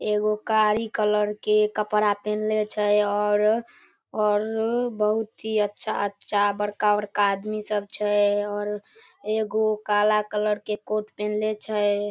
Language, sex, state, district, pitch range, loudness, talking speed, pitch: Maithili, female, Bihar, Darbhanga, 210-215 Hz, -24 LUFS, 135 wpm, 210 Hz